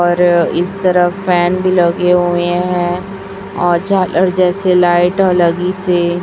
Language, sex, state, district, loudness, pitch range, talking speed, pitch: Hindi, female, Chhattisgarh, Raipur, -13 LUFS, 175-185 Hz, 145 wpm, 180 Hz